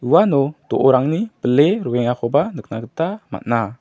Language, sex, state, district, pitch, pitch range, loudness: Garo, male, Meghalaya, South Garo Hills, 135 Hz, 120-155 Hz, -18 LUFS